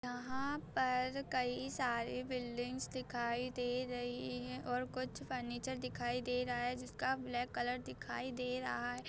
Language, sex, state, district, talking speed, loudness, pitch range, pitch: Hindi, female, Jharkhand, Sahebganj, 150 wpm, -40 LUFS, 245-255 Hz, 250 Hz